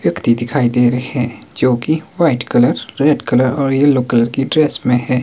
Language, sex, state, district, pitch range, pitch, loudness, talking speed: Hindi, male, Himachal Pradesh, Shimla, 120-140 Hz, 125 Hz, -15 LUFS, 205 wpm